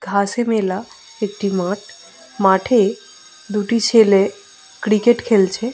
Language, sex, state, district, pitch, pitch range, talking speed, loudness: Bengali, female, Jharkhand, Jamtara, 215 Hz, 200-235 Hz, 95 wpm, -17 LUFS